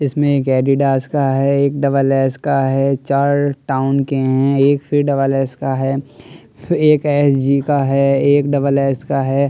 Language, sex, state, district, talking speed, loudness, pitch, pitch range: Hindi, male, Delhi, New Delhi, 195 wpm, -15 LUFS, 140 Hz, 135-140 Hz